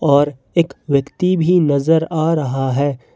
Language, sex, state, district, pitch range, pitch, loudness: Hindi, male, Jharkhand, Ranchi, 140-165 Hz, 145 Hz, -17 LUFS